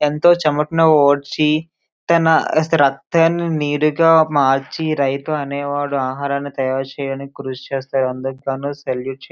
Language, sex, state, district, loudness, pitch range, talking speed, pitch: Telugu, male, Andhra Pradesh, Srikakulam, -17 LUFS, 135-155 Hz, 115 wpm, 145 Hz